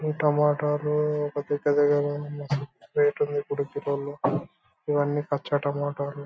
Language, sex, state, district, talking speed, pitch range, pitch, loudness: Telugu, male, Andhra Pradesh, Anantapur, 155 wpm, 145-150 Hz, 145 Hz, -26 LUFS